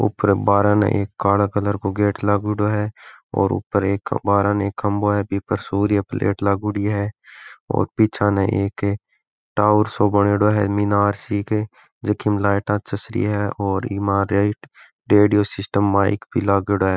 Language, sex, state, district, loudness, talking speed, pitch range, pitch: Marwari, male, Rajasthan, Nagaur, -20 LUFS, 175 wpm, 100-105 Hz, 100 Hz